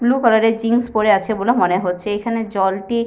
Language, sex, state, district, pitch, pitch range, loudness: Bengali, female, Jharkhand, Sahebganj, 225 Hz, 200-235 Hz, -17 LUFS